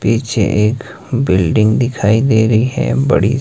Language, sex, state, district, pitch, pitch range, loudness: Hindi, male, Himachal Pradesh, Shimla, 115 Hz, 110-125 Hz, -14 LUFS